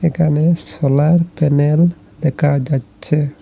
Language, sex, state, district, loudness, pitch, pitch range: Bengali, male, Assam, Hailakandi, -16 LUFS, 150 Hz, 145-165 Hz